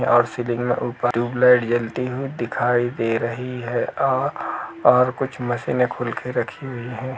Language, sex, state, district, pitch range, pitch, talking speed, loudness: Hindi, male, Uttar Pradesh, Jalaun, 120-125 Hz, 120 Hz, 160 wpm, -22 LUFS